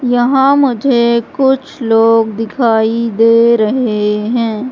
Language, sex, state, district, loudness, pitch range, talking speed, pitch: Hindi, female, Madhya Pradesh, Katni, -12 LUFS, 225-260 Hz, 100 wpm, 235 Hz